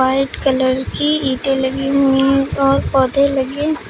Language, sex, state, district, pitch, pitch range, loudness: Hindi, female, Uttar Pradesh, Lucknow, 270 Hz, 265-275 Hz, -16 LUFS